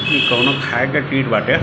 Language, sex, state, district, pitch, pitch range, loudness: Hindi, male, Bihar, Gopalganj, 135 Hz, 125-145 Hz, -16 LUFS